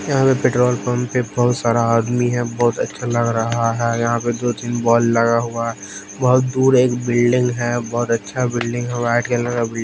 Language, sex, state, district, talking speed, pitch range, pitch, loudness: Hindi, male, Haryana, Rohtak, 215 wpm, 115-125 Hz, 120 Hz, -18 LUFS